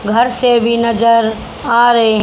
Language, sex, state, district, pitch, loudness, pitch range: Hindi, female, Haryana, Charkhi Dadri, 235 Hz, -12 LUFS, 225-240 Hz